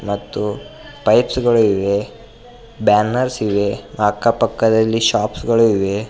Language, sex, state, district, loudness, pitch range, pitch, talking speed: Kannada, male, Karnataka, Bidar, -17 LUFS, 105-115 Hz, 110 Hz, 110 wpm